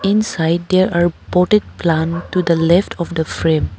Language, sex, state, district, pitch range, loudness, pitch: English, female, Arunachal Pradesh, Papum Pare, 165-185 Hz, -16 LUFS, 175 Hz